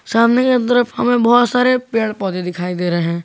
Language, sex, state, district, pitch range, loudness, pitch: Hindi, male, Jharkhand, Garhwa, 180-245 Hz, -15 LUFS, 230 Hz